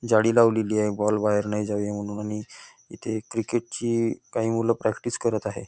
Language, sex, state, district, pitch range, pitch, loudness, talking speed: Marathi, male, Maharashtra, Nagpur, 105-115 Hz, 110 Hz, -25 LUFS, 170 wpm